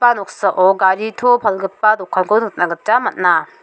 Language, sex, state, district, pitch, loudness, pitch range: Garo, female, Meghalaya, South Garo Hills, 200 Hz, -15 LUFS, 190-225 Hz